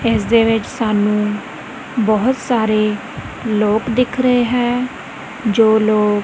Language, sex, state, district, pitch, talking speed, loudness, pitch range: Punjabi, female, Punjab, Kapurthala, 225 Hz, 115 wpm, -16 LUFS, 215-245 Hz